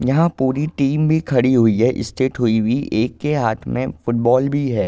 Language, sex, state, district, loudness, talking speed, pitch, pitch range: Hindi, male, Uttar Pradesh, Ghazipur, -18 LUFS, 210 wpm, 130 Hz, 115-140 Hz